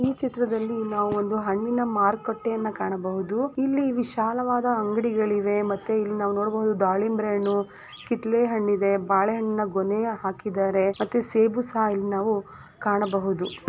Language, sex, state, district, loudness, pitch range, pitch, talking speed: Kannada, female, Karnataka, Gulbarga, -25 LUFS, 200-230 Hz, 215 Hz, 125 wpm